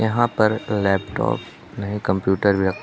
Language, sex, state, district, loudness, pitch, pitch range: Hindi, male, Uttar Pradesh, Lucknow, -21 LUFS, 100 Hz, 95-110 Hz